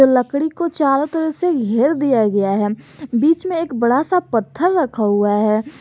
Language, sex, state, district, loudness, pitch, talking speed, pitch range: Hindi, male, Jharkhand, Garhwa, -17 LUFS, 270 Hz, 185 wpm, 220-320 Hz